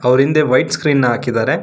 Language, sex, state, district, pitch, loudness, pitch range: Kannada, male, Karnataka, Bangalore, 135 Hz, -14 LUFS, 125-145 Hz